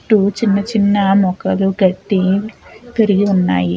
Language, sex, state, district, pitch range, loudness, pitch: Telugu, female, Andhra Pradesh, Chittoor, 190-210 Hz, -15 LUFS, 195 Hz